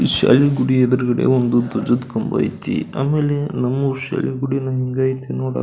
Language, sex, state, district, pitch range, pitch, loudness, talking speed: Kannada, male, Karnataka, Belgaum, 125-135 Hz, 130 Hz, -18 LUFS, 170 wpm